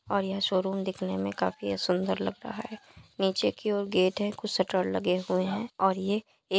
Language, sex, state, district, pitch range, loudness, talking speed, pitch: Hindi, male, Uttar Pradesh, Jalaun, 185-205 Hz, -29 LUFS, 210 wpm, 190 Hz